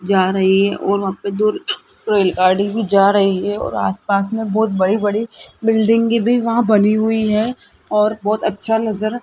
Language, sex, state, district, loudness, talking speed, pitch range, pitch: Hindi, female, Rajasthan, Jaipur, -17 LUFS, 190 wpm, 195-220 Hz, 210 Hz